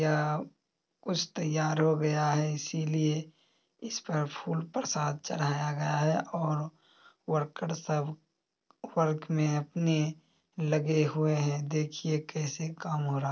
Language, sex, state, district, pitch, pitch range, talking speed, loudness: Maithili, male, Bihar, Samastipur, 155 Hz, 150-160 Hz, 135 wpm, -31 LUFS